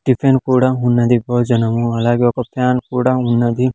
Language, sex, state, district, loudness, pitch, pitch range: Telugu, male, Andhra Pradesh, Sri Satya Sai, -15 LUFS, 120 Hz, 120-130 Hz